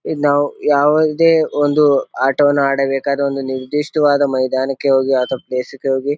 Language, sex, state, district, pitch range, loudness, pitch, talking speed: Kannada, male, Karnataka, Bijapur, 135-145 Hz, -16 LUFS, 140 Hz, 145 wpm